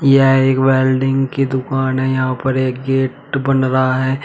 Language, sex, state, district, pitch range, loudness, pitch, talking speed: Hindi, male, Uttar Pradesh, Shamli, 130-135 Hz, -16 LUFS, 130 Hz, 185 wpm